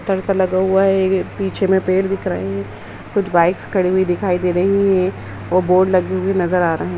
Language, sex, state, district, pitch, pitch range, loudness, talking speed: Hindi, female, Uttar Pradesh, Jalaun, 185 Hz, 180-190 Hz, -17 LUFS, 230 wpm